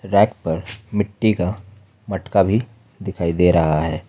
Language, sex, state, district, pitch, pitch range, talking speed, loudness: Hindi, male, Jharkhand, Ranchi, 100 Hz, 90-105 Hz, 145 wpm, -20 LUFS